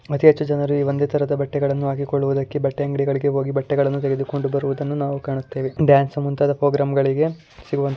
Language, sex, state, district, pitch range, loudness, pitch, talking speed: Kannada, female, Karnataka, Dakshina Kannada, 140-145 Hz, -20 LUFS, 140 Hz, 160 wpm